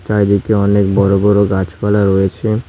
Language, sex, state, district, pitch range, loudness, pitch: Bengali, male, West Bengal, Cooch Behar, 95-105 Hz, -13 LUFS, 100 Hz